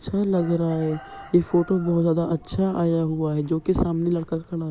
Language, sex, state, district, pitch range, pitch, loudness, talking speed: Hindi, male, Uttar Pradesh, Jyotiba Phule Nagar, 160-175 Hz, 170 Hz, -23 LUFS, 205 wpm